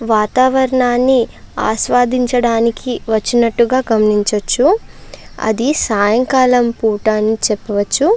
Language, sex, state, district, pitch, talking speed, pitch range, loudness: Telugu, female, Andhra Pradesh, Chittoor, 235 Hz, 75 wpm, 220-250 Hz, -14 LUFS